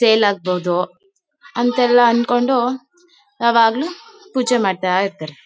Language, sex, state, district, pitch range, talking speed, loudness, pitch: Kannada, female, Karnataka, Mysore, 200-275 Hz, 90 wpm, -17 LUFS, 245 Hz